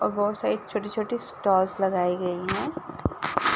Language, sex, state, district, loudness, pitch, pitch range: Hindi, female, Uttar Pradesh, Ghazipur, -27 LUFS, 195 Hz, 185-210 Hz